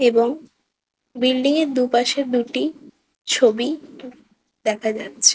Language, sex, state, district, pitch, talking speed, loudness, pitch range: Bengali, female, West Bengal, Kolkata, 255 Hz, 100 wpm, -20 LUFS, 240-285 Hz